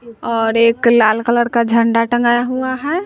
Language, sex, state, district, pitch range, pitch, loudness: Hindi, female, Bihar, West Champaran, 230-240 Hz, 235 Hz, -14 LUFS